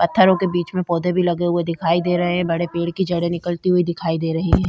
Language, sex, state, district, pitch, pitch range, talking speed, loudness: Hindi, female, Bihar, Vaishali, 175 Hz, 170-180 Hz, 280 wpm, -20 LUFS